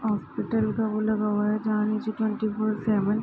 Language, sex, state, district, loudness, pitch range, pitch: Hindi, female, Bihar, Bhagalpur, -26 LUFS, 210-220 Hz, 215 Hz